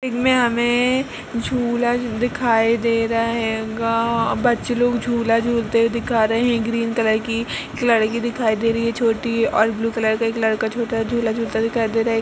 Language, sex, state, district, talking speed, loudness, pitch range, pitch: Hindi, female, Uttar Pradesh, Jalaun, 200 wpm, -19 LUFS, 225-240 Hz, 230 Hz